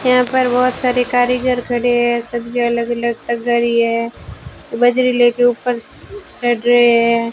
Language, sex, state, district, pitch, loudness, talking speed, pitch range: Hindi, female, Rajasthan, Bikaner, 240 Hz, -15 LUFS, 140 wpm, 235-250 Hz